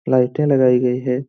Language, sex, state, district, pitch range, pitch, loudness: Hindi, male, Bihar, Lakhisarai, 125-135 Hz, 125 Hz, -16 LUFS